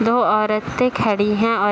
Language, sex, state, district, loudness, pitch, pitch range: Hindi, female, Bihar, Saharsa, -18 LUFS, 215 Hz, 210-230 Hz